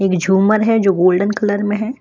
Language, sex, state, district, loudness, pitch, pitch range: Hindi, female, Delhi, New Delhi, -15 LUFS, 205 Hz, 190-215 Hz